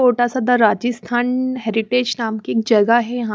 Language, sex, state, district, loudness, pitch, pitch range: Hindi, female, Haryana, Charkhi Dadri, -18 LUFS, 240 Hz, 225-250 Hz